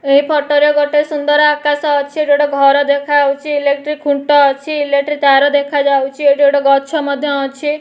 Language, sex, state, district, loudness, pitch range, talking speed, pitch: Odia, female, Odisha, Nuapada, -13 LUFS, 280-295 Hz, 170 wpm, 285 Hz